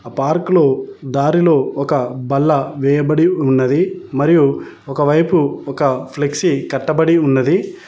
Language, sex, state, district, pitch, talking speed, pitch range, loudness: Telugu, male, Telangana, Mahabubabad, 145 Hz, 115 wpm, 135-165 Hz, -15 LUFS